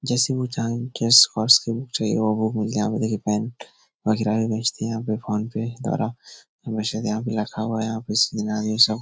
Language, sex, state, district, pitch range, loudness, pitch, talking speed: Hindi, male, Bihar, Jahanabad, 110-115 Hz, -22 LUFS, 110 Hz, 185 wpm